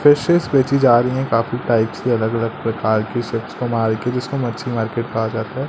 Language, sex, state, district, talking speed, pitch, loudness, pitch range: Hindi, male, Madhya Pradesh, Katni, 200 wpm, 120 Hz, -19 LUFS, 115-130 Hz